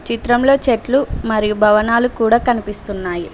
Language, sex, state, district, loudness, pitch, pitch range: Telugu, female, Telangana, Mahabubabad, -16 LUFS, 230 Hz, 210-245 Hz